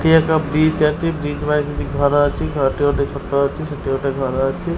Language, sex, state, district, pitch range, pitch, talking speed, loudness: Odia, male, Odisha, Khordha, 140-155 Hz, 145 Hz, 215 wpm, -18 LUFS